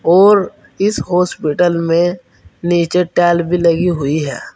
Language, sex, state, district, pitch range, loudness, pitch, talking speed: Hindi, male, Uttar Pradesh, Saharanpur, 165-180 Hz, -14 LUFS, 175 Hz, 130 wpm